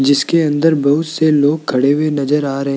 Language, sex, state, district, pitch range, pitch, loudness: Hindi, male, Rajasthan, Jaipur, 140-155 Hz, 145 Hz, -14 LUFS